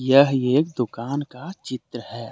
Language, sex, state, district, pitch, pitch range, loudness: Hindi, male, Jharkhand, Deoghar, 130 Hz, 120-140 Hz, -22 LUFS